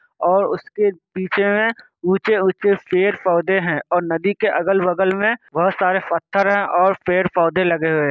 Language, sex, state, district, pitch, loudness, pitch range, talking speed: Hindi, male, Bihar, Kishanganj, 190 Hz, -18 LUFS, 175-200 Hz, 185 wpm